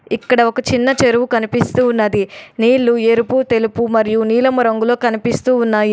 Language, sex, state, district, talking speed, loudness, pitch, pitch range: Telugu, female, Telangana, Adilabad, 140 wpm, -15 LUFS, 235 Hz, 225-245 Hz